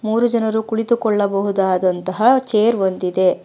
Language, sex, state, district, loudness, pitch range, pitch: Kannada, female, Karnataka, Bangalore, -17 LUFS, 190-225 Hz, 215 Hz